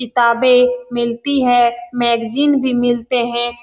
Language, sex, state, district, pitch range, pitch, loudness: Hindi, female, Bihar, Saran, 240-250 Hz, 245 Hz, -15 LUFS